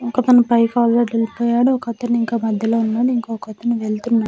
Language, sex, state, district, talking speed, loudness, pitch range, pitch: Telugu, female, Andhra Pradesh, Manyam, 125 wpm, -17 LUFS, 225-240 Hz, 235 Hz